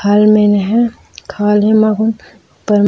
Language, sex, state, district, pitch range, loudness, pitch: Chhattisgarhi, female, Chhattisgarh, Raigarh, 205-215 Hz, -12 LUFS, 210 Hz